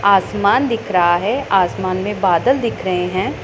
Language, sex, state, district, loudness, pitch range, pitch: Hindi, female, Punjab, Pathankot, -17 LUFS, 180-205 Hz, 190 Hz